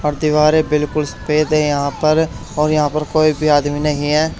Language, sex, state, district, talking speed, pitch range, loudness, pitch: Hindi, male, Haryana, Charkhi Dadri, 205 wpm, 150-155 Hz, -16 LUFS, 150 Hz